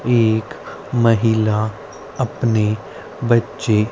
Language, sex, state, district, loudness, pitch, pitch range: Hindi, female, Haryana, Rohtak, -18 LUFS, 110 Hz, 110-120 Hz